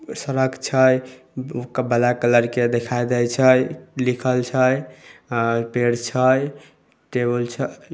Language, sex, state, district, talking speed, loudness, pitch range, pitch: Maithili, male, Bihar, Samastipur, 105 wpm, -20 LUFS, 120-130 Hz, 125 Hz